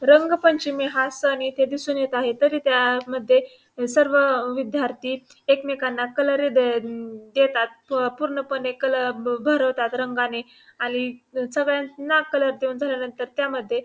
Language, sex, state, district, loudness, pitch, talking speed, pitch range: Marathi, female, Maharashtra, Pune, -22 LUFS, 265 Hz, 120 wpm, 250-280 Hz